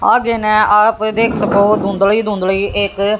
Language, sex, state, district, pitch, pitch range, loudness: Hindi, female, Haryana, Jhajjar, 210 Hz, 200-215 Hz, -13 LUFS